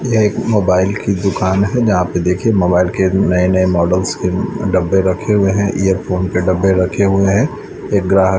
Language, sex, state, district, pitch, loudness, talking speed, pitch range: Hindi, male, Chandigarh, Chandigarh, 95 Hz, -14 LUFS, 200 wpm, 90-100 Hz